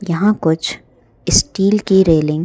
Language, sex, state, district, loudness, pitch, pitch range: Hindi, female, Madhya Pradesh, Bhopal, -15 LUFS, 190 Hz, 160-205 Hz